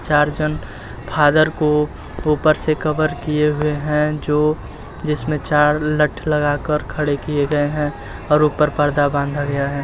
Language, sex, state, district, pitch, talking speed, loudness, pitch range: Hindi, male, Uttar Pradesh, Muzaffarnagar, 150 Hz, 150 wpm, -18 LUFS, 145-150 Hz